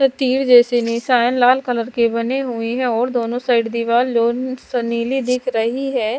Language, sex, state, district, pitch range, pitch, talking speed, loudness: Hindi, female, Bihar, Katihar, 235-255 Hz, 245 Hz, 185 wpm, -17 LUFS